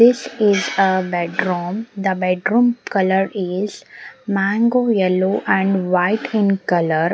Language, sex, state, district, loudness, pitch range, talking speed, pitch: English, female, Punjab, Pathankot, -18 LUFS, 185-210 Hz, 135 wpm, 195 Hz